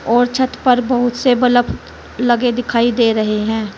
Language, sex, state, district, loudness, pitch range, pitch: Hindi, female, Uttar Pradesh, Saharanpur, -15 LUFS, 230-250 Hz, 245 Hz